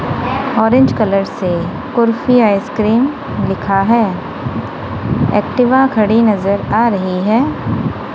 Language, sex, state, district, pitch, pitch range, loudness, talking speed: Hindi, female, Punjab, Kapurthala, 225 Hz, 200-250 Hz, -14 LUFS, 95 wpm